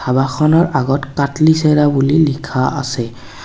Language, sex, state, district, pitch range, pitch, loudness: Assamese, male, Assam, Kamrup Metropolitan, 130-150 Hz, 140 Hz, -14 LUFS